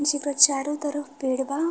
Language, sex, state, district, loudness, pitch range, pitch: Bhojpuri, female, Uttar Pradesh, Varanasi, -23 LUFS, 275-290 Hz, 290 Hz